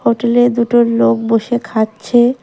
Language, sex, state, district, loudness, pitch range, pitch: Bengali, female, West Bengal, Cooch Behar, -13 LUFS, 225-240 Hz, 235 Hz